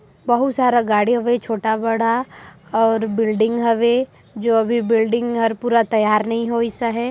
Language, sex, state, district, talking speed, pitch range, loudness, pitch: Chhattisgarhi, female, Chhattisgarh, Sarguja, 150 wpm, 220-235 Hz, -18 LUFS, 230 Hz